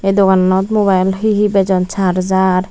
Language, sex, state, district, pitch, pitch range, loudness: Chakma, female, Tripura, Unakoti, 190 Hz, 185-195 Hz, -13 LUFS